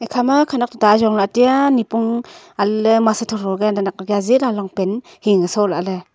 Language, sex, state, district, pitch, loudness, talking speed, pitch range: Wancho, female, Arunachal Pradesh, Longding, 220 Hz, -17 LUFS, 165 wpm, 200-245 Hz